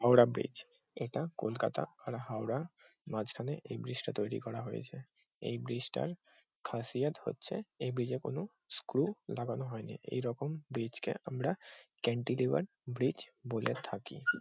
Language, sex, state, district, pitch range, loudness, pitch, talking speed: Bengali, male, West Bengal, Kolkata, 120-160 Hz, -37 LUFS, 130 Hz, 135 wpm